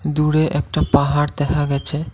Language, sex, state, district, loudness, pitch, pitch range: Bengali, male, Assam, Kamrup Metropolitan, -18 LUFS, 145 Hz, 145-150 Hz